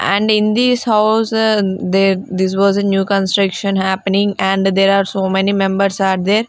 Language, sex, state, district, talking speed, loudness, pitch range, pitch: English, female, Punjab, Fazilka, 165 wpm, -15 LUFS, 195-205 Hz, 195 Hz